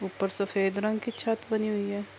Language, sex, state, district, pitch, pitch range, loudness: Urdu, female, Andhra Pradesh, Anantapur, 205 Hz, 195-220 Hz, -30 LUFS